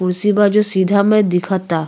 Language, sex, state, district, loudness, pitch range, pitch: Bhojpuri, female, Uttar Pradesh, Ghazipur, -15 LUFS, 180-210 Hz, 195 Hz